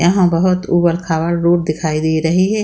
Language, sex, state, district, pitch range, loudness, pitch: Hindi, female, Bihar, Saran, 160-180 Hz, -15 LUFS, 170 Hz